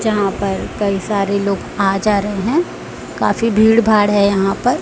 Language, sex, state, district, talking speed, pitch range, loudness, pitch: Hindi, female, Chhattisgarh, Raipur, 185 wpm, 200-220 Hz, -16 LUFS, 205 Hz